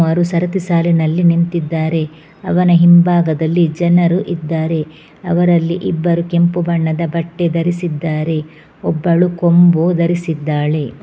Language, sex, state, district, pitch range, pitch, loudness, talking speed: Kannada, female, Karnataka, Bangalore, 160-175 Hz, 170 Hz, -14 LUFS, 90 wpm